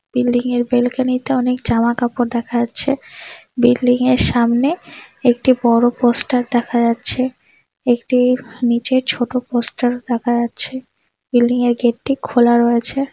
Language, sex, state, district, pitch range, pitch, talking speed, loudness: Bengali, female, West Bengal, Malda, 240-255 Hz, 245 Hz, 115 wpm, -16 LUFS